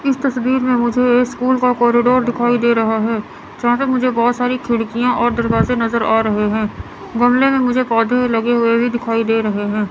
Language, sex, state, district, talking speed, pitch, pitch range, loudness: Hindi, female, Chandigarh, Chandigarh, 205 wpm, 240 Hz, 230-250 Hz, -16 LUFS